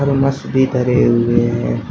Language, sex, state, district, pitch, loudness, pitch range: Hindi, male, Uttar Pradesh, Shamli, 125 Hz, -15 LUFS, 120-135 Hz